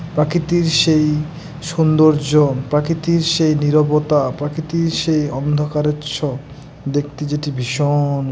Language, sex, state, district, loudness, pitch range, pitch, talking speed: Bengali, male, West Bengal, Dakshin Dinajpur, -17 LUFS, 145-160 Hz, 150 Hz, 95 wpm